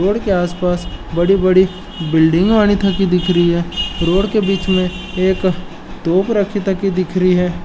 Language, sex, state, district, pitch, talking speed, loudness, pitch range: Marwari, male, Rajasthan, Nagaur, 185 Hz, 165 wpm, -15 LUFS, 175-195 Hz